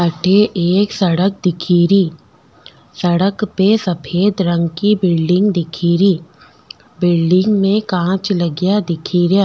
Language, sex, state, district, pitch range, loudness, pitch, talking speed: Rajasthani, female, Rajasthan, Nagaur, 175-195 Hz, -15 LUFS, 180 Hz, 110 wpm